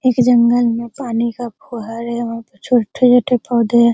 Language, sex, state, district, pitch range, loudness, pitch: Hindi, female, Bihar, Araria, 235-245 Hz, -16 LUFS, 235 Hz